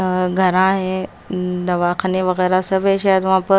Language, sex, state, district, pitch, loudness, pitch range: Hindi, female, Maharashtra, Mumbai Suburban, 185 Hz, -17 LUFS, 185-190 Hz